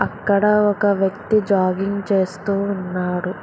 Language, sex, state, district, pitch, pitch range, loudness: Telugu, female, Telangana, Hyderabad, 200 Hz, 185-205 Hz, -19 LUFS